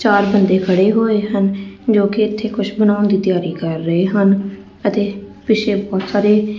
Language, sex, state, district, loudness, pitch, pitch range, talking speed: Punjabi, female, Punjab, Kapurthala, -16 LUFS, 205 Hz, 195-210 Hz, 165 wpm